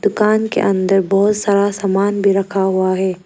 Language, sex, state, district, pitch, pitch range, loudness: Hindi, female, Arunachal Pradesh, Lower Dibang Valley, 195 Hz, 190-205 Hz, -15 LUFS